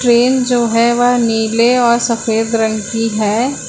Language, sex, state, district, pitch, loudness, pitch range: Hindi, female, Uttar Pradesh, Lucknow, 235 Hz, -13 LUFS, 225-245 Hz